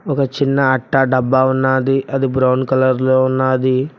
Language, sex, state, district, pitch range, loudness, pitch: Telugu, male, Telangana, Mahabubabad, 130-135 Hz, -15 LUFS, 130 Hz